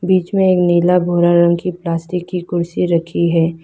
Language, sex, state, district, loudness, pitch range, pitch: Hindi, female, Arunachal Pradesh, Lower Dibang Valley, -15 LUFS, 170-180 Hz, 175 Hz